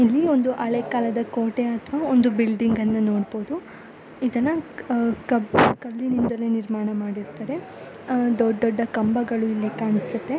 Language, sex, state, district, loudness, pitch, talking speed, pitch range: Kannada, female, Karnataka, Bellary, -23 LUFS, 235 Hz, 100 wpm, 220-250 Hz